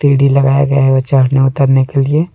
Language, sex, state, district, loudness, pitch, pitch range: Hindi, male, Jharkhand, Deoghar, -11 LUFS, 135 Hz, 135-140 Hz